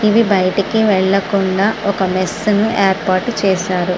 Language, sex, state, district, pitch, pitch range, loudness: Telugu, female, Andhra Pradesh, Srikakulam, 195 Hz, 190-210 Hz, -15 LUFS